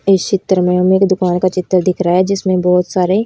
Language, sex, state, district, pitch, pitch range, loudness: Hindi, female, Haryana, Rohtak, 185 Hz, 180-190 Hz, -14 LUFS